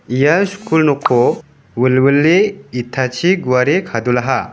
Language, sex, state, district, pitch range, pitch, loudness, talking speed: Garo, male, Meghalaya, West Garo Hills, 125-160 Hz, 135 Hz, -14 LUFS, 90 wpm